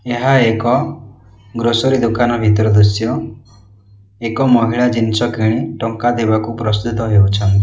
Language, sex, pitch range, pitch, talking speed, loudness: Odia, male, 105-120 Hz, 115 Hz, 120 wpm, -15 LUFS